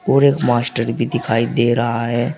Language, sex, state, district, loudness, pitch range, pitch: Hindi, male, Uttar Pradesh, Saharanpur, -17 LUFS, 115-120 Hz, 120 Hz